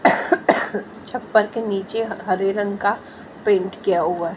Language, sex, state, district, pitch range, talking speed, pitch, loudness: Hindi, female, Haryana, Jhajjar, 190-220 Hz, 135 wpm, 205 Hz, -21 LUFS